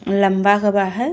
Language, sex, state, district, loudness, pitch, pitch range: Bhojpuri, female, Uttar Pradesh, Ghazipur, -17 LUFS, 200 Hz, 195-205 Hz